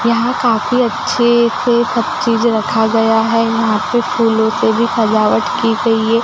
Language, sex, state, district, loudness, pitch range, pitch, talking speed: Hindi, male, Maharashtra, Gondia, -14 LUFS, 225-240 Hz, 230 Hz, 175 wpm